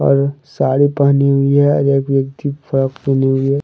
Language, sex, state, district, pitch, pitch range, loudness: Hindi, male, Jharkhand, Deoghar, 140 Hz, 135-140 Hz, -15 LUFS